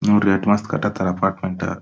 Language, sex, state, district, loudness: Kannada, male, Karnataka, Dharwad, -20 LUFS